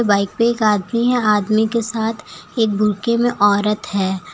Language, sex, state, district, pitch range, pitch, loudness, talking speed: Hindi, female, Uttar Pradesh, Lucknow, 205-230 Hz, 215 Hz, -17 LUFS, 195 wpm